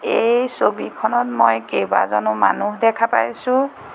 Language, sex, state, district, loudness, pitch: Assamese, female, Assam, Sonitpur, -18 LUFS, 225 Hz